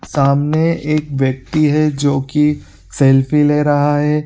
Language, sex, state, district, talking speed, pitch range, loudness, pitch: Hindi, male, Bihar, Supaul, 140 wpm, 140-150 Hz, -15 LUFS, 145 Hz